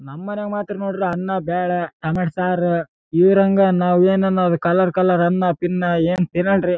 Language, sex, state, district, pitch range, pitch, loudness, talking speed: Kannada, male, Karnataka, Raichur, 175-190 Hz, 180 Hz, -18 LUFS, 60 wpm